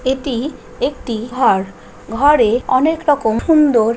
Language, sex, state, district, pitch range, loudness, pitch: Bengali, female, West Bengal, Paschim Medinipur, 230-295 Hz, -15 LUFS, 255 Hz